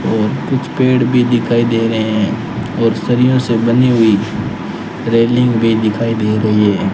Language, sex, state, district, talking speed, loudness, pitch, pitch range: Hindi, male, Rajasthan, Bikaner, 165 wpm, -14 LUFS, 115 Hz, 110-120 Hz